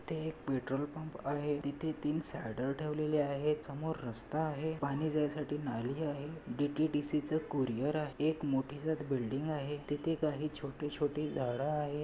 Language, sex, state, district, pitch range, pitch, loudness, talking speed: Marathi, male, Maharashtra, Nagpur, 140-155 Hz, 150 Hz, -36 LUFS, 150 wpm